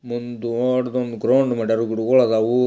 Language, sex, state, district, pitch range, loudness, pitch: Kannada, male, Karnataka, Belgaum, 115-125 Hz, -20 LUFS, 120 Hz